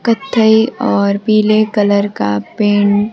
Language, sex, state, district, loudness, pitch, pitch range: Hindi, female, Bihar, Kaimur, -13 LUFS, 210 Hz, 205-220 Hz